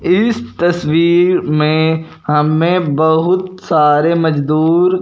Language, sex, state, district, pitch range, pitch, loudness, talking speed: Hindi, male, Punjab, Fazilka, 155-180 Hz, 165 Hz, -13 LUFS, 85 wpm